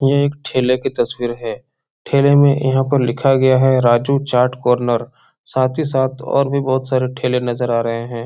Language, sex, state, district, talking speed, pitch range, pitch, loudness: Hindi, male, Uttar Pradesh, Etah, 205 wpm, 120-140 Hz, 130 Hz, -16 LUFS